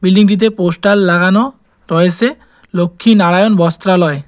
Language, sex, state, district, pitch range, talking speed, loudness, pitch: Bengali, male, West Bengal, Cooch Behar, 175-215 Hz, 100 wpm, -12 LUFS, 190 Hz